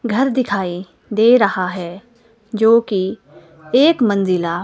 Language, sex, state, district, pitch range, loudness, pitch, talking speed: Hindi, female, Himachal Pradesh, Shimla, 185-235 Hz, -16 LUFS, 215 Hz, 115 wpm